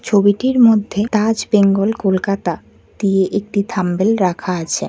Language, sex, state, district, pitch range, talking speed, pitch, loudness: Bengali, female, West Bengal, Kolkata, 185-215 Hz, 120 wpm, 200 Hz, -16 LUFS